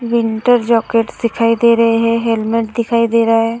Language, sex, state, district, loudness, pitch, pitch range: Hindi, female, Uttar Pradesh, Hamirpur, -14 LUFS, 230 Hz, 230-235 Hz